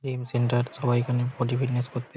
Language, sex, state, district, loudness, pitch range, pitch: Bengali, male, West Bengal, Paschim Medinipur, -26 LUFS, 120-125 Hz, 125 Hz